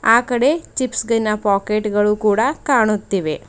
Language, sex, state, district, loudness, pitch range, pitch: Kannada, female, Karnataka, Bidar, -17 LUFS, 210-240 Hz, 215 Hz